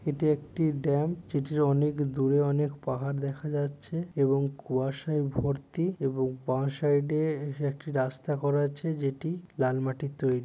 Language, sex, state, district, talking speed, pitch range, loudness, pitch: Bengali, male, West Bengal, Purulia, 145 wpm, 135-150 Hz, -29 LUFS, 145 Hz